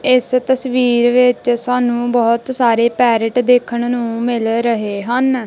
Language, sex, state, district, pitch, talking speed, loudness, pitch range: Punjabi, female, Punjab, Kapurthala, 240 Hz, 130 wpm, -15 LUFS, 235-250 Hz